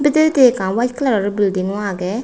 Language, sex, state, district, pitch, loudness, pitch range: Chakma, female, Tripura, West Tripura, 215 Hz, -16 LUFS, 195-260 Hz